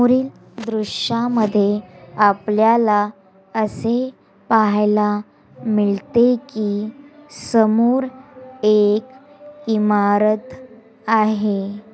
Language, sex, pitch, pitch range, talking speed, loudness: Marathi, female, 220 Hz, 210-245 Hz, 60 wpm, -18 LUFS